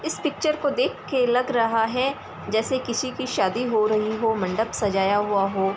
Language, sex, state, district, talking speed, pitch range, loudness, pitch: Hindi, female, Bihar, Darbhanga, 200 wpm, 205-255 Hz, -23 LUFS, 225 Hz